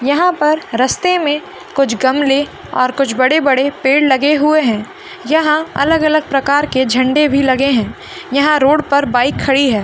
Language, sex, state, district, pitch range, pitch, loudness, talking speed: Hindi, female, Bihar, Saharsa, 260-300 Hz, 280 Hz, -13 LUFS, 165 wpm